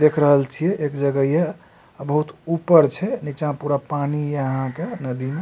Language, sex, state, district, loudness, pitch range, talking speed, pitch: Maithili, male, Bihar, Supaul, -21 LUFS, 140-160 Hz, 210 wpm, 145 Hz